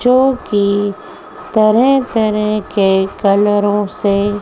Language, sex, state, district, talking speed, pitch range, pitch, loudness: Hindi, female, Madhya Pradesh, Dhar, 95 wpm, 200-220 Hz, 205 Hz, -14 LUFS